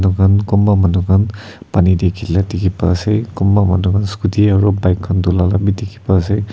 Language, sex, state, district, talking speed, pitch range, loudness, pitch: Nagamese, male, Nagaland, Kohima, 190 wpm, 95-105 Hz, -15 LUFS, 95 Hz